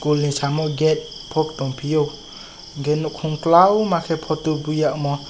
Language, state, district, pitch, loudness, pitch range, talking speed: Kokborok, Tripura, West Tripura, 155 Hz, -20 LUFS, 145-155 Hz, 170 wpm